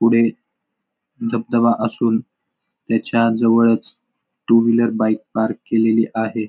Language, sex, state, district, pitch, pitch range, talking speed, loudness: Marathi, male, Maharashtra, Pune, 115 Hz, 110-115 Hz, 100 wpm, -18 LUFS